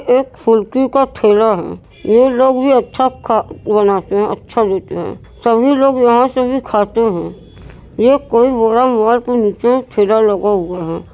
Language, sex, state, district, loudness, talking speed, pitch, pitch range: Hindi, female, Uttar Pradesh, Varanasi, -13 LUFS, 165 wpm, 235 Hz, 210-255 Hz